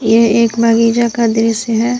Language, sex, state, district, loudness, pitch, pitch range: Hindi, female, Jharkhand, Garhwa, -12 LUFS, 230 Hz, 225-230 Hz